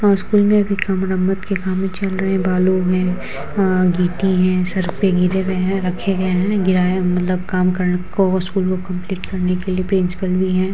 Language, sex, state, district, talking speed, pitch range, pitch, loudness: Hindi, female, Bihar, Vaishali, 185 wpm, 185-190 Hz, 185 Hz, -18 LUFS